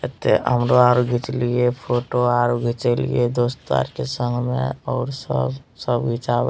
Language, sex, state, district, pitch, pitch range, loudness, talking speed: Maithili, male, Bihar, Madhepura, 120 Hz, 120-125 Hz, -21 LUFS, 175 wpm